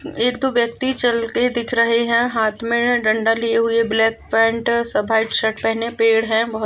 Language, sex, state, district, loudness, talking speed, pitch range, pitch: Hindi, female, Maharashtra, Solapur, -18 LUFS, 180 wpm, 225-235 Hz, 230 Hz